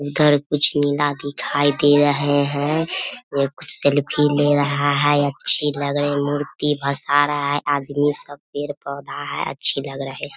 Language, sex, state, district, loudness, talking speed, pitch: Hindi, female, Bihar, Samastipur, -19 LUFS, 170 wpm, 145 Hz